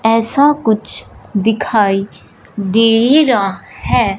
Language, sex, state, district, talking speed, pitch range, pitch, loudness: Hindi, female, Punjab, Fazilka, 85 wpm, 205-235 Hz, 225 Hz, -14 LUFS